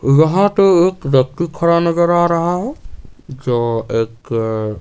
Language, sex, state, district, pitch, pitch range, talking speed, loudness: Hindi, male, Bihar, Patna, 160 Hz, 120-175 Hz, 135 wpm, -15 LUFS